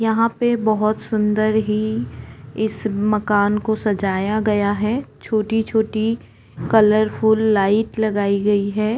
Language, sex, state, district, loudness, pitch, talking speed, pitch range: Hindi, female, Uttarakhand, Tehri Garhwal, -19 LUFS, 215 Hz, 115 wpm, 205-220 Hz